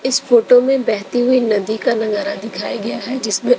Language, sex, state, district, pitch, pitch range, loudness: Hindi, female, Bihar, West Champaran, 240 Hz, 215-250 Hz, -16 LUFS